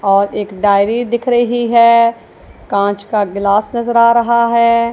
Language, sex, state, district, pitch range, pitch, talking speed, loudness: Hindi, female, Punjab, Kapurthala, 205-235 Hz, 235 Hz, 160 wpm, -13 LUFS